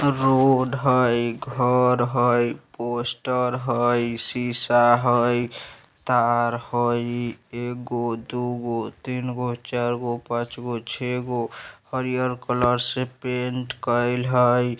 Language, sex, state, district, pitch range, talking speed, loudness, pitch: Bajjika, male, Bihar, Vaishali, 120-125 Hz, 90 wpm, -23 LUFS, 120 Hz